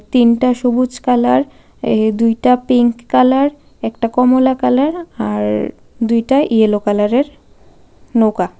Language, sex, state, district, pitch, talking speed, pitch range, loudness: Bengali, female, Tripura, West Tripura, 245 Hz, 105 wpm, 220-255 Hz, -14 LUFS